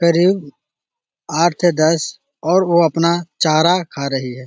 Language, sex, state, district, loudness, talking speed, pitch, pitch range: Magahi, male, Bihar, Jahanabad, -16 LUFS, 150 wpm, 170 Hz, 155-180 Hz